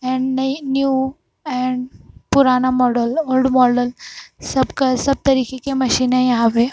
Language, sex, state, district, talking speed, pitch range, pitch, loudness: Hindi, female, Punjab, Fazilka, 150 wpm, 250-270 Hz, 260 Hz, -17 LUFS